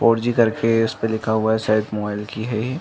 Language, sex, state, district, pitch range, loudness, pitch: Hindi, male, Uttar Pradesh, Jalaun, 110-115 Hz, -20 LUFS, 110 Hz